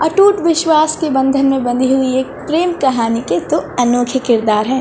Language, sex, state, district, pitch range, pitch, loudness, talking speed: Hindi, female, Chhattisgarh, Balrampur, 245-315 Hz, 265 Hz, -14 LUFS, 175 wpm